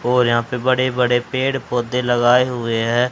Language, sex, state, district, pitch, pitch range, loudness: Hindi, male, Haryana, Charkhi Dadri, 125 Hz, 120-125 Hz, -18 LUFS